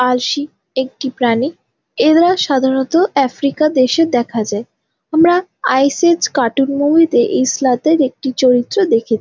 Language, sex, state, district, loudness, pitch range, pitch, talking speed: Bengali, female, West Bengal, Jalpaiguri, -14 LUFS, 255-320 Hz, 270 Hz, 130 wpm